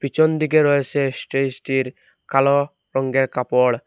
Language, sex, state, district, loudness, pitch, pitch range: Bengali, male, Assam, Hailakandi, -20 LUFS, 135 Hz, 130-145 Hz